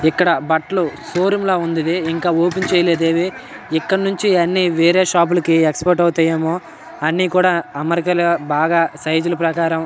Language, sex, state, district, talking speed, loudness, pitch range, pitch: Telugu, male, Telangana, Nalgonda, 170 wpm, -17 LUFS, 165-180 Hz, 170 Hz